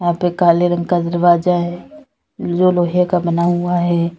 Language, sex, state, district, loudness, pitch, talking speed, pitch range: Hindi, female, Uttar Pradesh, Lalitpur, -16 LUFS, 175 Hz, 185 wpm, 170-180 Hz